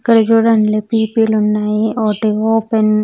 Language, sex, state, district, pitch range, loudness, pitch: Telugu, female, Andhra Pradesh, Sri Satya Sai, 215-225 Hz, -14 LUFS, 220 Hz